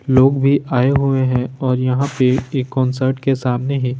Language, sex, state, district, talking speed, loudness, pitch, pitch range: Hindi, male, Bihar, Kaimur, 195 wpm, -17 LUFS, 130 Hz, 125-135 Hz